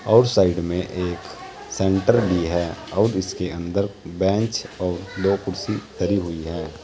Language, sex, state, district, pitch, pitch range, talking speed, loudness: Hindi, male, Uttar Pradesh, Saharanpur, 90 Hz, 85-100 Hz, 150 wpm, -22 LUFS